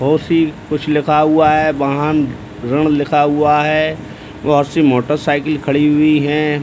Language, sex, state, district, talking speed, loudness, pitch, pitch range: Hindi, male, Bihar, Saran, 165 wpm, -14 LUFS, 150 Hz, 145-155 Hz